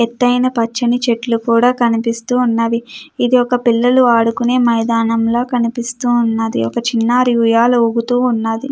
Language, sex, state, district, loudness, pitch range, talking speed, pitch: Telugu, female, Andhra Pradesh, Krishna, -14 LUFS, 230-245 Hz, 125 wpm, 235 Hz